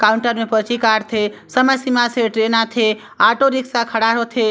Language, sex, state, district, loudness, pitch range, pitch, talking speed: Chhattisgarhi, female, Chhattisgarh, Sarguja, -16 LUFS, 220-240 Hz, 230 Hz, 200 wpm